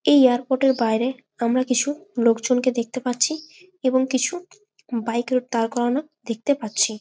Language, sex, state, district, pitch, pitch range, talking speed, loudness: Bengali, female, West Bengal, Jalpaiguri, 255 Hz, 235-275 Hz, 155 wpm, -22 LUFS